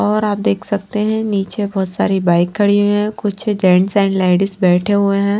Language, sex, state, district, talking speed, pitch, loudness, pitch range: Hindi, female, Maharashtra, Washim, 210 wpm, 200 Hz, -15 LUFS, 190-205 Hz